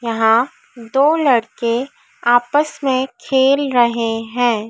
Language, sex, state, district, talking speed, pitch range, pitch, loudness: Hindi, female, Madhya Pradesh, Dhar, 100 wpm, 230-270 Hz, 245 Hz, -16 LUFS